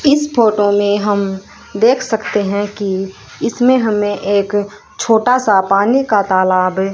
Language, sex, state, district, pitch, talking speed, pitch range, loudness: Hindi, female, Haryana, Rohtak, 205 Hz, 140 wpm, 195-225 Hz, -14 LUFS